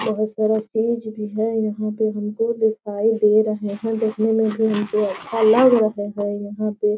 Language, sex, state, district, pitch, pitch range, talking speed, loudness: Hindi, female, Bihar, Sitamarhi, 215 Hz, 210-220 Hz, 195 wpm, -20 LUFS